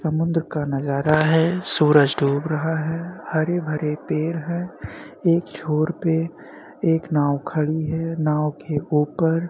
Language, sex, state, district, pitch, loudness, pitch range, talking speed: Hindi, male, Uttar Pradesh, Jyotiba Phule Nagar, 160 Hz, -21 LUFS, 150-165 Hz, 145 wpm